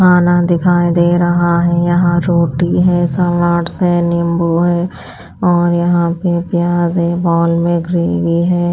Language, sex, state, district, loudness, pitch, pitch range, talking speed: Hindi, female, Punjab, Pathankot, -13 LUFS, 175 Hz, 170-175 Hz, 145 wpm